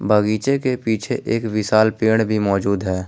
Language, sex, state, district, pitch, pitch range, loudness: Hindi, male, Jharkhand, Ranchi, 110 Hz, 100-110 Hz, -19 LUFS